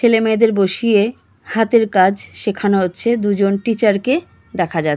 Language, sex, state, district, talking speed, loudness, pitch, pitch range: Bengali, female, West Bengal, Kolkata, 135 wpm, -16 LUFS, 210 Hz, 195-230 Hz